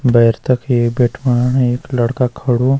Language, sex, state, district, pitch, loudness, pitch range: Garhwali, male, Uttarakhand, Uttarkashi, 125 Hz, -15 LUFS, 120-130 Hz